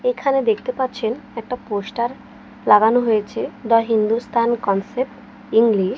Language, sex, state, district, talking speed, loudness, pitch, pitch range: Bengali, female, Odisha, Malkangiri, 110 wpm, -19 LUFS, 235 Hz, 220-245 Hz